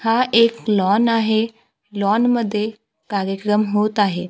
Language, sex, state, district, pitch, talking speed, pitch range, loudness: Marathi, female, Maharashtra, Gondia, 215 Hz, 125 wpm, 205-230 Hz, -18 LUFS